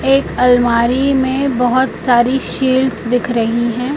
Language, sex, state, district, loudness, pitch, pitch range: Hindi, female, Madhya Pradesh, Katni, -14 LUFS, 250 Hz, 240-265 Hz